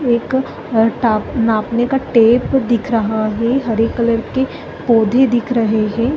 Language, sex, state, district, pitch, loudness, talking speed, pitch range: Hindi, female, Chhattisgarh, Bastar, 235 Hz, -15 LUFS, 135 wpm, 225-250 Hz